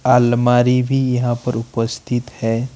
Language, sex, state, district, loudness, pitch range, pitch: Hindi, male, Jharkhand, Ranchi, -17 LUFS, 120-125 Hz, 120 Hz